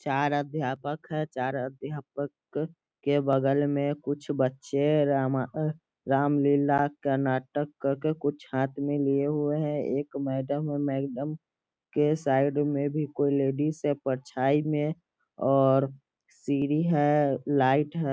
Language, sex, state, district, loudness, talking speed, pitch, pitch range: Hindi, male, Bihar, Begusarai, -28 LUFS, 130 wpm, 145 Hz, 135-145 Hz